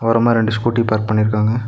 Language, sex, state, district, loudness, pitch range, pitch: Tamil, male, Tamil Nadu, Nilgiris, -16 LUFS, 110-115 Hz, 110 Hz